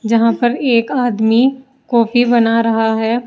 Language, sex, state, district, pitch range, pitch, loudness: Hindi, female, Uttar Pradesh, Saharanpur, 230-245 Hz, 235 Hz, -14 LUFS